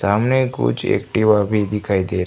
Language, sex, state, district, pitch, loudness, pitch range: Hindi, male, Gujarat, Gandhinagar, 105 Hz, -18 LUFS, 95-110 Hz